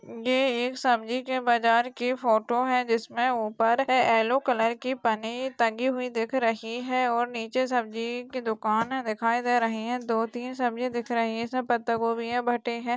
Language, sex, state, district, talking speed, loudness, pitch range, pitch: Hindi, female, Maharashtra, Sindhudurg, 190 wpm, -26 LUFS, 230-250 Hz, 240 Hz